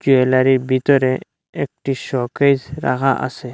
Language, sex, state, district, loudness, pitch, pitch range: Bengali, male, Assam, Hailakandi, -18 LUFS, 130 Hz, 130-135 Hz